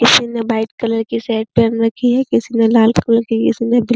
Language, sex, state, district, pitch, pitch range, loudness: Hindi, female, Uttar Pradesh, Jyotiba Phule Nagar, 230 Hz, 225-235 Hz, -15 LUFS